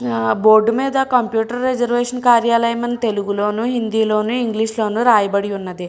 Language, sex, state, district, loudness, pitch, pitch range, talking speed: Telugu, female, Andhra Pradesh, Srikakulam, -17 LUFS, 225 Hz, 210-240 Hz, 155 wpm